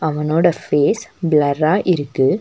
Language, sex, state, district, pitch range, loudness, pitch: Tamil, female, Tamil Nadu, Nilgiris, 145-175 Hz, -17 LUFS, 155 Hz